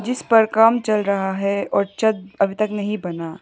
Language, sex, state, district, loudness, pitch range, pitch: Hindi, female, Arunachal Pradesh, Lower Dibang Valley, -19 LUFS, 195-220 Hz, 205 Hz